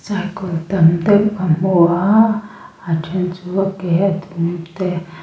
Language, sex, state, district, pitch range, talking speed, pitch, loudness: Mizo, female, Mizoram, Aizawl, 170-195 Hz, 160 wpm, 185 Hz, -17 LUFS